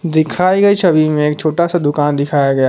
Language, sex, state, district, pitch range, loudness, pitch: Hindi, male, Jharkhand, Palamu, 145-175 Hz, -13 LUFS, 155 Hz